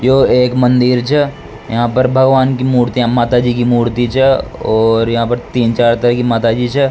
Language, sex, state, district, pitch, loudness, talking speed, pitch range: Rajasthani, male, Rajasthan, Nagaur, 120 Hz, -13 LUFS, 200 wpm, 120-130 Hz